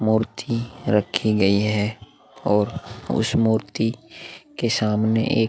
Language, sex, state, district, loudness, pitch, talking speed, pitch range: Hindi, male, Uttar Pradesh, Muzaffarnagar, -22 LUFS, 110 Hz, 120 wpm, 105-115 Hz